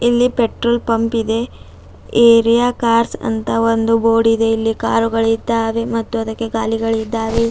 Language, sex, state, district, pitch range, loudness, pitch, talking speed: Kannada, female, Karnataka, Bidar, 225-230 Hz, -16 LUFS, 230 Hz, 110 wpm